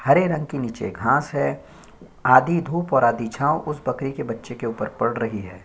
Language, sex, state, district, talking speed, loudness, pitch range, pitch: Hindi, male, Chhattisgarh, Korba, 210 wpm, -22 LUFS, 115-150 Hz, 130 Hz